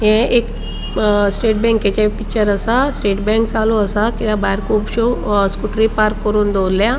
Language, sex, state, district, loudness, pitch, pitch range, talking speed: Konkani, female, Goa, North and South Goa, -16 LUFS, 215 Hz, 205-225 Hz, 135 wpm